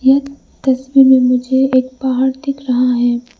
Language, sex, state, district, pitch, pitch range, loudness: Hindi, female, Arunachal Pradesh, Lower Dibang Valley, 260 Hz, 250-270 Hz, -14 LUFS